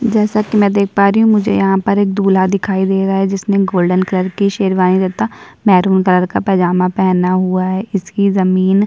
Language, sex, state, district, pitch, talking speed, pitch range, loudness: Hindi, female, Uttar Pradesh, Jyotiba Phule Nagar, 195 Hz, 215 wpm, 185-200 Hz, -14 LUFS